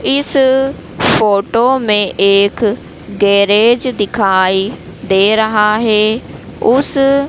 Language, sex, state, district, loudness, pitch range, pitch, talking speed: Hindi, female, Madhya Pradesh, Dhar, -12 LUFS, 200-255 Hz, 215 Hz, 80 wpm